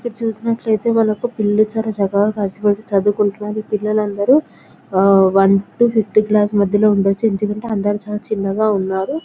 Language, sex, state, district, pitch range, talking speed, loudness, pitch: Telugu, female, Telangana, Nalgonda, 200-220 Hz, 170 wpm, -16 LUFS, 210 Hz